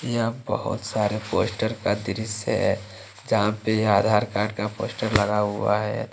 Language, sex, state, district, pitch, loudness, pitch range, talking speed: Hindi, male, Jharkhand, Deoghar, 105 Hz, -24 LUFS, 105-110 Hz, 155 wpm